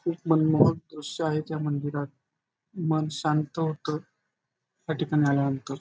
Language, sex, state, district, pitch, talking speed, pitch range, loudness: Marathi, male, Maharashtra, Pune, 155 Hz, 125 wpm, 145-160 Hz, -27 LUFS